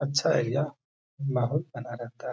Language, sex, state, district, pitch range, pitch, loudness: Hindi, male, Bihar, Gaya, 120-140 Hz, 140 Hz, -29 LUFS